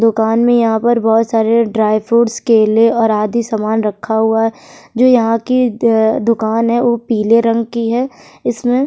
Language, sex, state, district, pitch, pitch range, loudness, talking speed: Hindi, female, Bihar, Kishanganj, 230 Hz, 220-235 Hz, -13 LUFS, 185 wpm